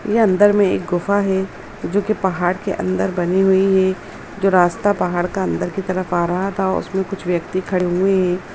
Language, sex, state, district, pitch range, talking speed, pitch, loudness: Hindi, female, Bihar, Gaya, 180-195 Hz, 210 wpm, 190 Hz, -18 LUFS